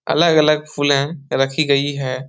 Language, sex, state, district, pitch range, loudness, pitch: Hindi, male, Bihar, Supaul, 140-155 Hz, -17 LUFS, 145 Hz